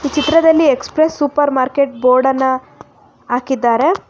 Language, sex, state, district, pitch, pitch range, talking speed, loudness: Kannada, female, Karnataka, Bangalore, 280 Hz, 255-300 Hz, 100 wpm, -14 LUFS